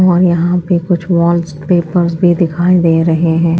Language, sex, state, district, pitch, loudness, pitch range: Hindi, female, Chhattisgarh, Raipur, 170 Hz, -12 LUFS, 165-180 Hz